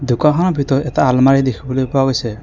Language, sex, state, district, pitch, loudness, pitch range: Assamese, male, Assam, Kamrup Metropolitan, 135 Hz, -15 LUFS, 130-140 Hz